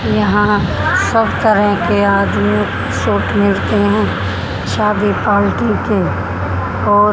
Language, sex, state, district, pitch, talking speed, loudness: Hindi, female, Haryana, Charkhi Dadri, 100 Hz, 95 wpm, -14 LUFS